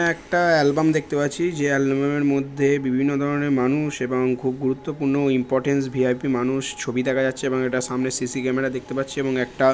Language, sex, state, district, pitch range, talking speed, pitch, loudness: Bengali, male, West Bengal, Purulia, 130-145 Hz, 180 wpm, 135 Hz, -22 LUFS